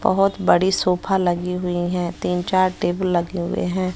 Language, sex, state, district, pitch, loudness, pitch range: Hindi, female, Bihar, West Champaran, 180 Hz, -20 LUFS, 175-185 Hz